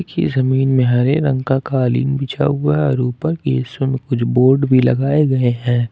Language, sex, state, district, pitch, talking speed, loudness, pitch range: Hindi, male, Jharkhand, Ranchi, 135 Hz, 180 wpm, -16 LUFS, 125-140 Hz